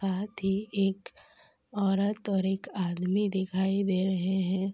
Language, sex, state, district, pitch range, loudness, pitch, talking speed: Hindi, female, Bihar, Gopalganj, 190-205 Hz, -29 LUFS, 195 Hz, 150 wpm